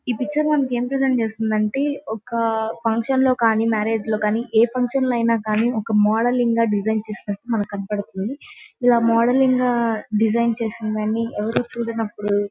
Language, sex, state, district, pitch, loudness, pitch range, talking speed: Telugu, female, Andhra Pradesh, Guntur, 230 Hz, -21 LUFS, 215-245 Hz, 160 wpm